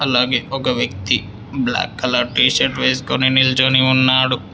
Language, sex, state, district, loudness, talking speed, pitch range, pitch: Telugu, male, Telangana, Hyderabad, -16 LUFS, 120 wpm, 120-130 Hz, 130 Hz